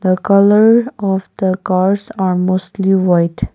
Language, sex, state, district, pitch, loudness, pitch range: English, female, Nagaland, Kohima, 190 Hz, -14 LUFS, 185-200 Hz